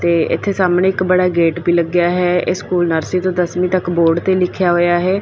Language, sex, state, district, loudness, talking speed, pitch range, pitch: Punjabi, female, Punjab, Fazilka, -15 LUFS, 230 wpm, 175-185 Hz, 180 Hz